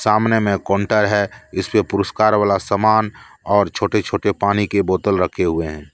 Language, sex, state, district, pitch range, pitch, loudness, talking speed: Hindi, male, Jharkhand, Deoghar, 100-105 Hz, 100 Hz, -18 LUFS, 170 wpm